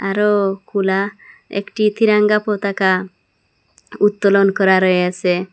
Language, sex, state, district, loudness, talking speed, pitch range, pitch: Bengali, female, Assam, Hailakandi, -16 LUFS, 85 wpm, 190-210 Hz, 200 Hz